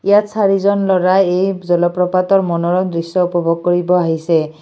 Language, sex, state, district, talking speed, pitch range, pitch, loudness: Assamese, female, Assam, Kamrup Metropolitan, 130 wpm, 175-195 Hz, 180 Hz, -15 LUFS